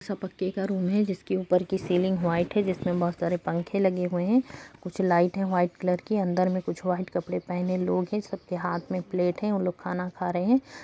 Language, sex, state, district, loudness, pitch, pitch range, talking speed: Hindi, female, Chhattisgarh, Kabirdham, -27 LUFS, 185 Hz, 180-190 Hz, 240 wpm